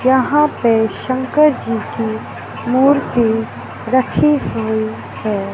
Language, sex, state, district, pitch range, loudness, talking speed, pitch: Hindi, male, Madhya Pradesh, Katni, 220-260 Hz, -16 LUFS, 95 wpm, 235 Hz